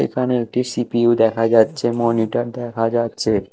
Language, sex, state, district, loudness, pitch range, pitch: Bengali, male, Odisha, Malkangiri, -18 LUFS, 115-120 Hz, 120 Hz